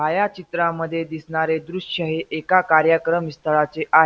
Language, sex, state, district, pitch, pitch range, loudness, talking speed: Marathi, male, Maharashtra, Pune, 165 Hz, 160-170 Hz, -21 LUFS, 135 wpm